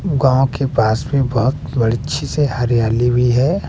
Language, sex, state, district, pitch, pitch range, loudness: Hindi, male, Bihar, West Champaran, 130 Hz, 120-140 Hz, -16 LUFS